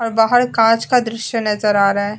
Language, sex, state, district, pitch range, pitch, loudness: Hindi, female, Goa, North and South Goa, 210-230 Hz, 225 Hz, -15 LUFS